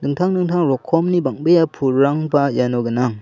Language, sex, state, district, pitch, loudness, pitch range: Garo, male, Meghalaya, South Garo Hills, 145 Hz, -17 LUFS, 130-170 Hz